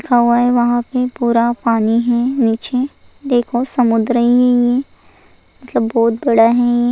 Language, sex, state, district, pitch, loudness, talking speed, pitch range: Hindi, female, Goa, North and South Goa, 240 Hz, -15 LUFS, 120 wpm, 235-250 Hz